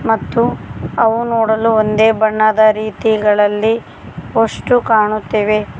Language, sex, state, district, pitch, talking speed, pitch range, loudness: Kannada, female, Karnataka, Koppal, 220 Hz, 85 wpm, 215-225 Hz, -14 LUFS